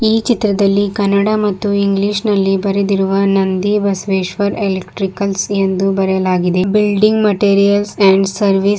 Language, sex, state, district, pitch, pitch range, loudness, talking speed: Kannada, female, Karnataka, Bidar, 200 Hz, 195-205 Hz, -14 LUFS, 115 wpm